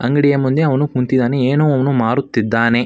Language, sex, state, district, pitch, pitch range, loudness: Kannada, male, Karnataka, Mysore, 130 Hz, 120-140 Hz, -15 LUFS